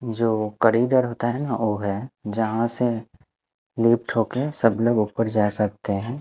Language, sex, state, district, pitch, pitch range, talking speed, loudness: Hindi, male, Bihar, Kaimur, 115 Hz, 105-120 Hz, 155 wpm, -23 LUFS